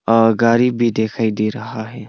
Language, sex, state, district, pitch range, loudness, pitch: Hindi, male, Arunachal Pradesh, Longding, 110-115 Hz, -16 LUFS, 115 Hz